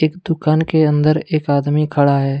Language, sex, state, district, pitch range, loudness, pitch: Hindi, male, Jharkhand, Deoghar, 145-155 Hz, -16 LUFS, 155 Hz